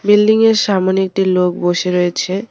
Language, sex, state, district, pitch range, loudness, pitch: Bengali, female, West Bengal, Cooch Behar, 180-210 Hz, -14 LUFS, 190 Hz